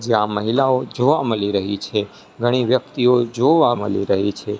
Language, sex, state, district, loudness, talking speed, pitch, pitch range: Gujarati, male, Gujarat, Gandhinagar, -19 LUFS, 155 wpm, 115 Hz, 105-125 Hz